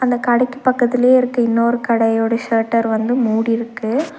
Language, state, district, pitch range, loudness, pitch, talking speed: Tamil, Tamil Nadu, Nilgiris, 230-250 Hz, -16 LUFS, 240 Hz, 145 wpm